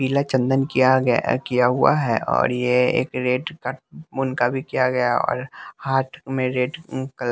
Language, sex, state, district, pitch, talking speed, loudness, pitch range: Hindi, male, Bihar, West Champaran, 130 Hz, 170 wpm, -21 LUFS, 125-135 Hz